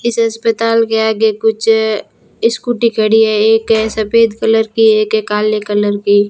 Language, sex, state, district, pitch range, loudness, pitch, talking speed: Hindi, female, Rajasthan, Bikaner, 215-225 Hz, -13 LUFS, 220 Hz, 150 wpm